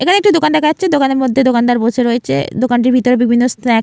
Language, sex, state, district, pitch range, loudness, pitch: Bengali, female, West Bengal, Jalpaiguri, 240-290 Hz, -13 LUFS, 250 Hz